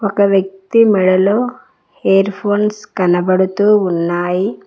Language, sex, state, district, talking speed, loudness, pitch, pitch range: Telugu, female, Telangana, Mahabubabad, 90 wpm, -14 LUFS, 195 Hz, 185-210 Hz